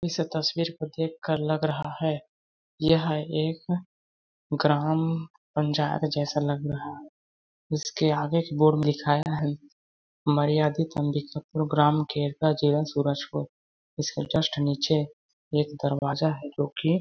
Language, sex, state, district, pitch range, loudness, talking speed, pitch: Hindi, male, Chhattisgarh, Balrampur, 145-155 Hz, -27 LUFS, 120 wpm, 150 Hz